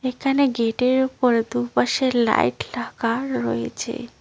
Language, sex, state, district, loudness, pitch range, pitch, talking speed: Bengali, female, West Bengal, Cooch Behar, -22 LUFS, 225-260 Hz, 240 Hz, 100 wpm